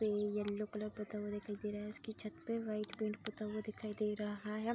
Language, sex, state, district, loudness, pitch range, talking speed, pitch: Hindi, female, Bihar, Vaishali, -42 LUFS, 210-215 Hz, 250 wpm, 210 Hz